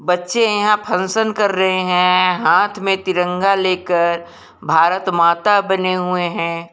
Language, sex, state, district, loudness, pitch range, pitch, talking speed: Hindi, female, Rajasthan, Jaipur, -16 LUFS, 175-195 Hz, 185 Hz, 135 wpm